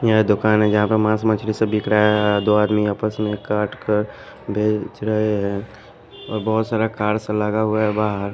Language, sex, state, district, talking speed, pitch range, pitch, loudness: Hindi, male, Punjab, Pathankot, 195 wpm, 105-110 Hz, 105 Hz, -20 LUFS